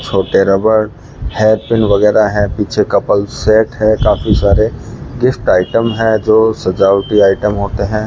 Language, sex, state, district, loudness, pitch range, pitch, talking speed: Hindi, male, Rajasthan, Bikaner, -12 LUFS, 100-110 Hz, 110 Hz, 150 wpm